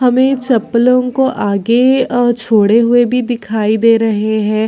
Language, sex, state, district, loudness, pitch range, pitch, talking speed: Hindi, female, Chhattisgarh, Bilaspur, -12 LUFS, 220-250 Hz, 235 Hz, 155 wpm